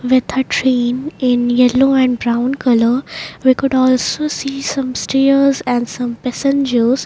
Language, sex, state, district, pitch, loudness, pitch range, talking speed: English, female, Maharashtra, Mumbai Suburban, 255 Hz, -15 LUFS, 245-275 Hz, 120 wpm